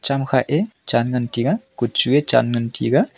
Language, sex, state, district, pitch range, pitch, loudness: Wancho, male, Arunachal Pradesh, Longding, 120-145 Hz, 125 Hz, -19 LUFS